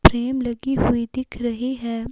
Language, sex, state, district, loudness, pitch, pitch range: Hindi, female, Himachal Pradesh, Shimla, -23 LUFS, 240 Hz, 235-260 Hz